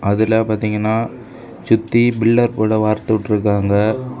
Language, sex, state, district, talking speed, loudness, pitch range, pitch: Tamil, male, Tamil Nadu, Kanyakumari, 100 wpm, -16 LUFS, 110-120 Hz, 110 Hz